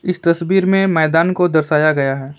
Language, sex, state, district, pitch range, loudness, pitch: Hindi, male, West Bengal, Alipurduar, 155-180 Hz, -15 LUFS, 165 Hz